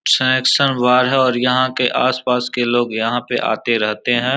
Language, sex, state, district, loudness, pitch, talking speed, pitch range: Hindi, male, Bihar, Samastipur, -16 LUFS, 125 Hz, 190 wpm, 120-130 Hz